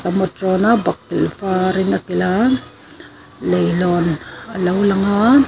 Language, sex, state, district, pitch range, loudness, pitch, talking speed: Mizo, female, Mizoram, Aizawl, 180-200 Hz, -17 LUFS, 185 Hz, 110 wpm